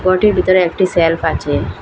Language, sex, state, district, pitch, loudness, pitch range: Bengali, female, Assam, Hailakandi, 175 Hz, -14 LUFS, 160-185 Hz